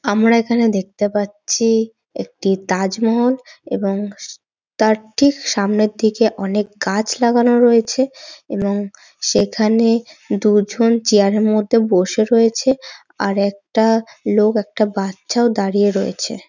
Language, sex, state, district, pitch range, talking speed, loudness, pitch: Bengali, female, West Bengal, Dakshin Dinajpur, 205-235 Hz, 110 wpm, -17 LUFS, 220 Hz